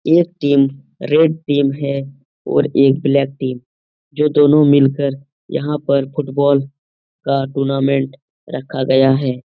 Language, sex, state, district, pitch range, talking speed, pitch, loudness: Hindi, male, Bihar, Lakhisarai, 135-145 Hz, 140 wpm, 140 Hz, -16 LUFS